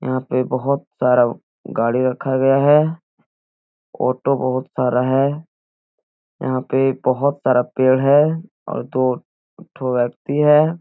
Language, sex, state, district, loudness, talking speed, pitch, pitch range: Hindi, male, Bihar, Jahanabad, -18 LUFS, 130 wpm, 130 Hz, 125-140 Hz